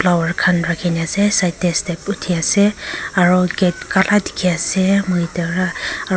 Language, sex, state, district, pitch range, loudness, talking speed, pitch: Nagamese, female, Nagaland, Kohima, 175-190 Hz, -17 LUFS, 125 wpm, 180 Hz